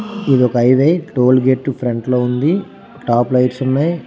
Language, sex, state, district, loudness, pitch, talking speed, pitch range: Telugu, male, Andhra Pradesh, Srikakulam, -15 LUFS, 130 Hz, 145 wpm, 125-150 Hz